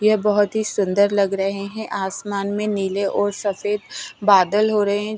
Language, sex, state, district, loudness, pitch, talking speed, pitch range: Hindi, female, Punjab, Fazilka, -20 LUFS, 205 Hz, 185 wpm, 200-210 Hz